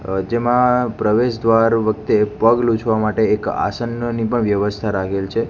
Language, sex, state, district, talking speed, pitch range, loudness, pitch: Gujarati, male, Gujarat, Gandhinagar, 130 wpm, 105-120 Hz, -18 LUFS, 110 Hz